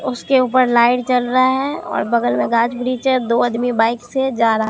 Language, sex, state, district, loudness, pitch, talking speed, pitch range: Hindi, female, Bihar, Katihar, -16 LUFS, 245 Hz, 230 wpm, 235-260 Hz